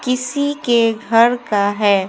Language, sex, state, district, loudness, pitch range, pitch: Hindi, female, Bihar, Patna, -16 LUFS, 210-250 Hz, 235 Hz